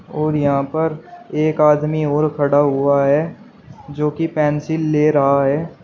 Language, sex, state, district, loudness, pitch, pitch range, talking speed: Hindi, male, Uttar Pradesh, Shamli, -17 LUFS, 150 Hz, 145-160 Hz, 155 wpm